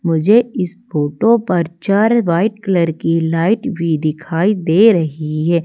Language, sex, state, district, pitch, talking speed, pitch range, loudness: Hindi, female, Madhya Pradesh, Umaria, 170 Hz, 150 wpm, 165-215 Hz, -15 LUFS